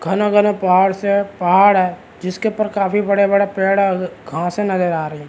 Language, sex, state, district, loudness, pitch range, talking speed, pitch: Hindi, male, Chhattisgarh, Rajnandgaon, -16 LUFS, 180-200 Hz, 195 wpm, 195 Hz